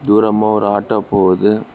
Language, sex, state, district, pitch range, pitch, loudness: Tamil, male, Tamil Nadu, Kanyakumari, 100-110 Hz, 105 Hz, -13 LUFS